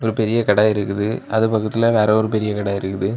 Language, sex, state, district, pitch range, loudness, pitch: Tamil, male, Tamil Nadu, Kanyakumari, 105-110 Hz, -18 LUFS, 110 Hz